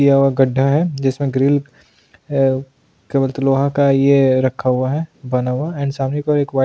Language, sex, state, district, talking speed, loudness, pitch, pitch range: Hindi, male, Goa, North and South Goa, 180 wpm, -17 LUFS, 135 Hz, 130-140 Hz